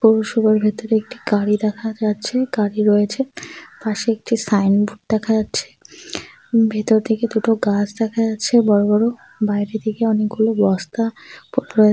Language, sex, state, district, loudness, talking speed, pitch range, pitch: Bengali, female, West Bengal, Dakshin Dinajpur, -19 LUFS, 135 wpm, 210-225 Hz, 220 Hz